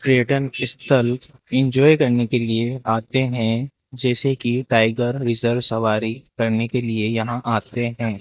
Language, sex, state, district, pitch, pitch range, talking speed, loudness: Hindi, male, Rajasthan, Jaipur, 120 Hz, 115-130 Hz, 140 wpm, -20 LUFS